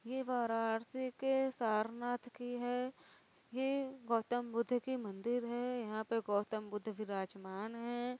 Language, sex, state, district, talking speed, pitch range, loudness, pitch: Hindi, female, Uttar Pradesh, Varanasi, 130 wpm, 220-250 Hz, -39 LUFS, 240 Hz